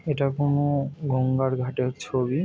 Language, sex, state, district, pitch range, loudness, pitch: Bengali, male, West Bengal, North 24 Parganas, 130-145 Hz, -25 LUFS, 135 Hz